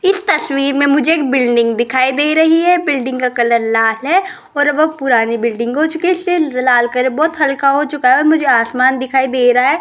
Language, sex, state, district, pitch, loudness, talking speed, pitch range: Hindi, female, Rajasthan, Jaipur, 275 Hz, -13 LUFS, 225 wpm, 250-315 Hz